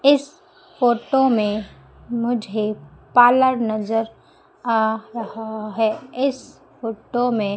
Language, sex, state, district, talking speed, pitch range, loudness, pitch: Hindi, female, Madhya Pradesh, Umaria, 95 wpm, 220-260 Hz, -21 LUFS, 230 Hz